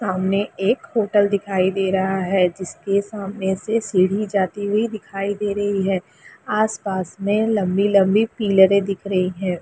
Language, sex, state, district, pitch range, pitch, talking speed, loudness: Hindi, female, Chhattisgarh, Raigarh, 190-205 Hz, 195 Hz, 170 wpm, -20 LUFS